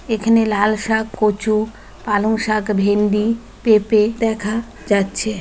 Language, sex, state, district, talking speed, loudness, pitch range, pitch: Bengali, female, West Bengal, Malda, 110 wpm, -18 LUFS, 210-220 Hz, 215 Hz